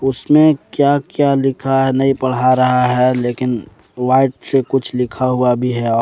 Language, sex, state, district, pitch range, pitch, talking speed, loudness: Hindi, male, Jharkhand, Ranchi, 125-135 Hz, 130 Hz, 170 wpm, -15 LUFS